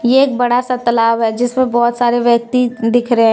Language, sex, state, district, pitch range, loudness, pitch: Hindi, female, Jharkhand, Deoghar, 235-245 Hz, -14 LUFS, 240 Hz